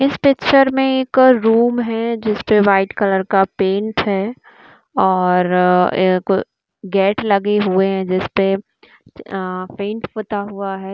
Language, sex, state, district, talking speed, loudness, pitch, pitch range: Hindi, female, Bihar, Gaya, 130 wpm, -16 LUFS, 200 Hz, 190-225 Hz